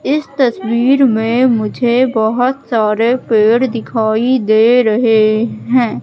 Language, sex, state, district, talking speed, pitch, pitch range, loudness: Hindi, female, Madhya Pradesh, Katni, 110 wpm, 235 Hz, 220-255 Hz, -13 LUFS